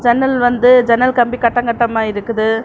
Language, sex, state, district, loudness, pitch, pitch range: Tamil, female, Tamil Nadu, Kanyakumari, -13 LUFS, 240 Hz, 230-245 Hz